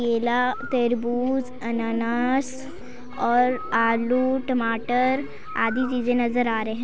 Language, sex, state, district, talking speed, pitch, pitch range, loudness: Hindi, female, Chhattisgarh, Sarguja, 95 wpm, 245 Hz, 235-255 Hz, -23 LUFS